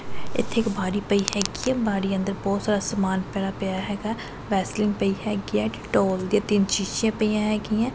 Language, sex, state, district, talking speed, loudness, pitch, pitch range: Punjabi, female, Punjab, Pathankot, 190 wpm, -25 LUFS, 200 Hz, 195-215 Hz